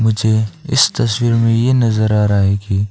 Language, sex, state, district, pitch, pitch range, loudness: Hindi, male, Arunachal Pradesh, Papum Pare, 110 Hz, 105-115 Hz, -15 LUFS